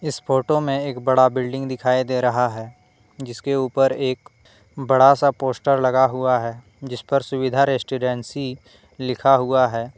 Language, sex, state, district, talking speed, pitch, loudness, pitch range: Hindi, male, Jharkhand, Deoghar, 155 wpm, 130 Hz, -20 LUFS, 125-135 Hz